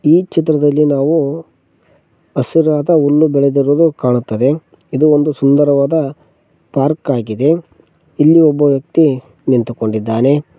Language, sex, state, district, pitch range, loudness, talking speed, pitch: Kannada, male, Karnataka, Koppal, 135-155 Hz, -13 LUFS, 90 wpm, 145 Hz